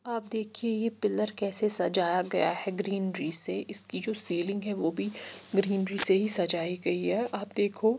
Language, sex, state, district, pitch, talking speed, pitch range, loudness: Hindi, female, Chandigarh, Chandigarh, 200 Hz, 180 wpm, 185-215 Hz, -21 LUFS